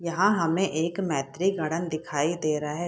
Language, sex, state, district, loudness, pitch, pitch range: Hindi, female, Bihar, Saharsa, -26 LUFS, 165 Hz, 155-175 Hz